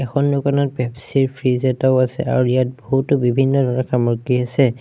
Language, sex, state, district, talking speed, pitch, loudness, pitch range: Assamese, male, Assam, Sonitpur, 175 wpm, 130 Hz, -18 LUFS, 125-135 Hz